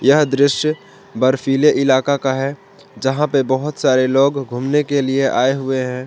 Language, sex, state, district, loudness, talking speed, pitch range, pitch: Hindi, male, Jharkhand, Palamu, -16 LUFS, 170 wpm, 130-145 Hz, 135 Hz